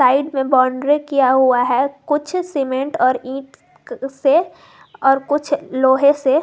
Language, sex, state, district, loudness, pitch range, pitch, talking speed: Hindi, female, Jharkhand, Garhwa, -17 LUFS, 260-290 Hz, 275 Hz, 140 wpm